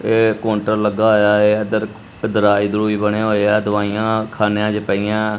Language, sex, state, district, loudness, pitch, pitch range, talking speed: Punjabi, male, Punjab, Kapurthala, -17 LUFS, 105 Hz, 105-110 Hz, 155 wpm